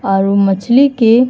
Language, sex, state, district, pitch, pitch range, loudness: Bhojpuri, female, Uttar Pradesh, Gorakhpur, 225 Hz, 195-250 Hz, -11 LUFS